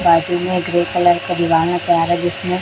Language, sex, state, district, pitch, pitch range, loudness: Hindi, male, Chhattisgarh, Raipur, 175 Hz, 170-175 Hz, -16 LUFS